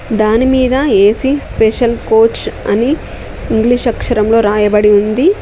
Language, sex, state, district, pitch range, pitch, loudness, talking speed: Telugu, female, Telangana, Mahabubabad, 215-255 Hz, 230 Hz, -12 LUFS, 100 wpm